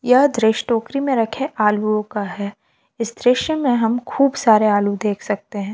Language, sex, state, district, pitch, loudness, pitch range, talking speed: Hindi, female, Jharkhand, Palamu, 225 Hz, -18 LUFS, 210-255 Hz, 190 wpm